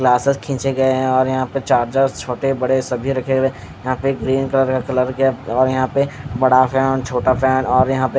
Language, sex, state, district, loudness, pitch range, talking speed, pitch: Hindi, male, Odisha, Khordha, -17 LUFS, 130-135 Hz, 205 wpm, 130 Hz